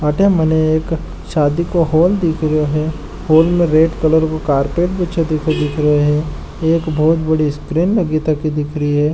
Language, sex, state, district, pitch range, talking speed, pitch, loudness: Marwari, male, Rajasthan, Nagaur, 150-165 Hz, 185 wpm, 155 Hz, -15 LUFS